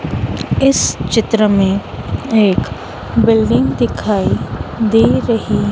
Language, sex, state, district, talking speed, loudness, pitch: Hindi, female, Madhya Pradesh, Dhar, 85 wpm, -14 LUFS, 205 Hz